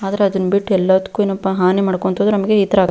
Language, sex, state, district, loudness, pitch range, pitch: Kannada, female, Karnataka, Belgaum, -16 LUFS, 190-200 Hz, 195 Hz